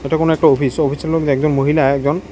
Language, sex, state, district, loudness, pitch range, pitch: Bengali, male, Tripura, West Tripura, -15 LUFS, 140-160 Hz, 150 Hz